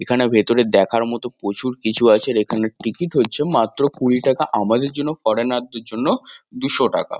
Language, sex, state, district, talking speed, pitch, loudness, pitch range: Bengali, male, West Bengal, Kolkata, 165 wpm, 125 Hz, -18 LUFS, 110-145 Hz